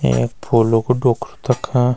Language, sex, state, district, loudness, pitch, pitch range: Garhwali, male, Uttarakhand, Uttarkashi, -18 LUFS, 115 Hz, 110-125 Hz